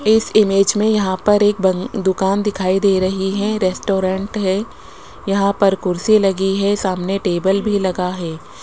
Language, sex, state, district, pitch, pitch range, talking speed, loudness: Hindi, male, Rajasthan, Jaipur, 195 Hz, 190-205 Hz, 165 wpm, -17 LUFS